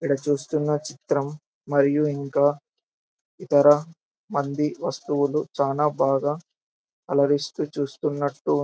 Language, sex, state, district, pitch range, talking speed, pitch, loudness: Telugu, male, Telangana, Karimnagar, 140-150 Hz, 85 wpm, 145 Hz, -24 LUFS